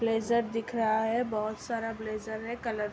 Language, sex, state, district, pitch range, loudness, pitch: Hindi, female, Uttar Pradesh, Hamirpur, 220-230 Hz, -31 LUFS, 225 Hz